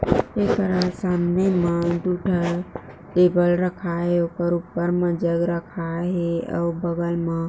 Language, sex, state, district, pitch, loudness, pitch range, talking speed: Chhattisgarhi, female, Chhattisgarh, Jashpur, 175 Hz, -22 LUFS, 170-180 Hz, 135 wpm